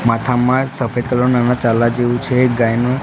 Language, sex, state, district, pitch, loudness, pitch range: Gujarati, male, Gujarat, Gandhinagar, 120 Hz, -15 LUFS, 120-125 Hz